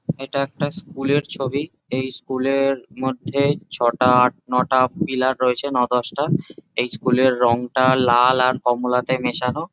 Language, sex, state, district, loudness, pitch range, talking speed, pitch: Bengali, male, West Bengal, Jhargram, -20 LUFS, 125-140 Hz, 150 wpm, 130 Hz